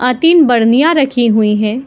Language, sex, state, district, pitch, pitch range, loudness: Hindi, female, Bihar, Saharsa, 250 Hz, 225-290 Hz, -10 LUFS